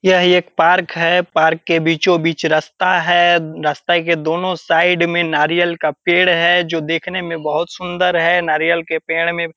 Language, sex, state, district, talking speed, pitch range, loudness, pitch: Hindi, male, Bihar, Purnia, 195 wpm, 165-175 Hz, -15 LUFS, 170 Hz